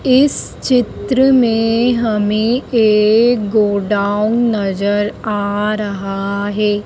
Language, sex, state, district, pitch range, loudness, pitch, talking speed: Hindi, female, Madhya Pradesh, Dhar, 205-235 Hz, -15 LUFS, 215 Hz, 85 wpm